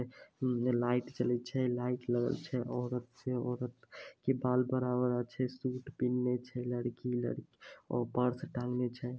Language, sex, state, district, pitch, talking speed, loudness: Maithili, male, Bihar, Samastipur, 125 Hz, 145 wpm, -35 LUFS